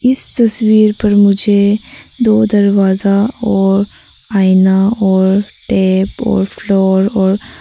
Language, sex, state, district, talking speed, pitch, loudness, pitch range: Hindi, female, Arunachal Pradesh, Papum Pare, 100 wpm, 200 Hz, -12 LUFS, 195-215 Hz